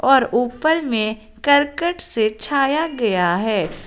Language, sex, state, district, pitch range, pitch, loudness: Hindi, female, Jharkhand, Garhwa, 215-285 Hz, 240 Hz, -19 LUFS